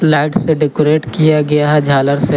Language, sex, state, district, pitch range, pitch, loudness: Hindi, male, Jharkhand, Garhwa, 145-155 Hz, 150 Hz, -13 LUFS